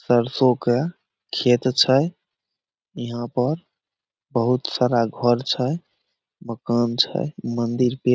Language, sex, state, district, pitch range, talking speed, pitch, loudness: Maithili, male, Bihar, Samastipur, 120-135 Hz, 110 wpm, 125 Hz, -22 LUFS